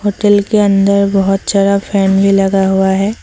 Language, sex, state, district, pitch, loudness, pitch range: Hindi, female, Assam, Sonitpur, 195 Hz, -11 LUFS, 195-205 Hz